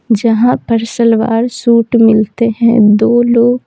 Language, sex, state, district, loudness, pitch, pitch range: Hindi, female, Bihar, Patna, -10 LUFS, 230 Hz, 225-235 Hz